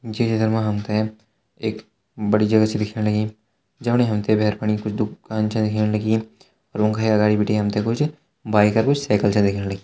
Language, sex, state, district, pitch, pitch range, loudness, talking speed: Hindi, male, Uttarakhand, Uttarkashi, 110 Hz, 105-110 Hz, -21 LUFS, 200 wpm